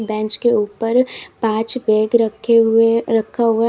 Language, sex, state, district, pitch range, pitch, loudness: Hindi, female, Uttar Pradesh, Lalitpur, 220-235 Hz, 225 Hz, -16 LUFS